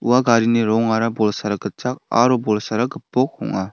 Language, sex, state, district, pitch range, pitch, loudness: Garo, male, Meghalaya, West Garo Hills, 110-125 Hz, 115 Hz, -19 LUFS